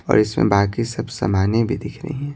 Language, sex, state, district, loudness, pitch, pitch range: Hindi, male, Bihar, Patna, -20 LUFS, 115 Hz, 100-125 Hz